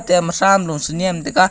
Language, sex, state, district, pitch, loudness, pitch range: Wancho, male, Arunachal Pradesh, Longding, 180 Hz, -17 LUFS, 160-185 Hz